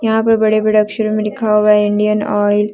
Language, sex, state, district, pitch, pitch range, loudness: Hindi, female, Jharkhand, Deoghar, 210 Hz, 210-215 Hz, -14 LUFS